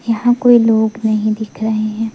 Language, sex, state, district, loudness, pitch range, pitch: Hindi, female, Madhya Pradesh, Umaria, -14 LUFS, 215-230 Hz, 220 Hz